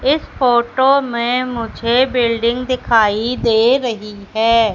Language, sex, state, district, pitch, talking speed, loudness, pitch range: Hindi, female, Madhya Pradesh, Katni, 235 Hz, 115 wpm, -16 LUFS, 230-255 Hz